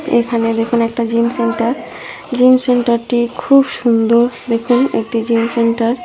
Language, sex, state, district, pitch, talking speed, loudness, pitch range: Bengali, female, West Bengal, Jhargram, 235 Hz, 150 wpm, -14 LUFS, 230-245 Hz